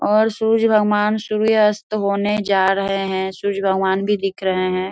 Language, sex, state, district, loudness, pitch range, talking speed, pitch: Hindi, female, Bihar, Saharsa, -18 LUFS, 190-215 Hz, 185 wpm, 200 Hz